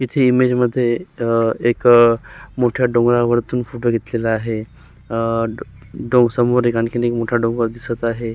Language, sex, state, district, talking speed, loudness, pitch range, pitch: Marathi, male, Maharashtra, Solapur, 135 wpm, -17 LUFS, 115-120 Hz, 120 Hz